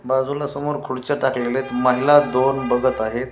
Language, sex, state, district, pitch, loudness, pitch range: Marathi, male, Maharashtra, Washim, 130 Hz, -20 LUFS, 125-145 Hz